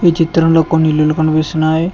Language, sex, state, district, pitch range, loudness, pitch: Telugu, male, Telangana, Mahabubabad, 155-165 Hz, -13 LUFS, 160 Hz